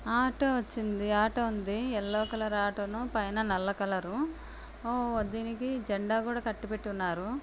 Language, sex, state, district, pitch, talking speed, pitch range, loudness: Telugu, female, Andhra Pradesh, Anantapur, 220 Hz, 135 wpm, 205-240 Hz, -32 LUFS